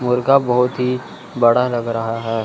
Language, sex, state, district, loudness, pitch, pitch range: Hindi, male, Chandigarh, Chandigarh, -17 LUFS, 125 Hz, 115-125 Hz